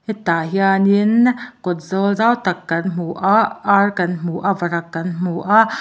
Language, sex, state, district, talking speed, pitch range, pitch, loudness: Mizo, male, Mizoram, Aizawl, 185 wpm, 175-210 Hz, 190 Hz, -17 LUFS